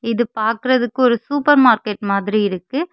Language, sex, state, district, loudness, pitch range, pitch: Tamil, female, Tamil Nadu, Kanyakumari, -17 LUFS, 210-255 Hz, 235 Hz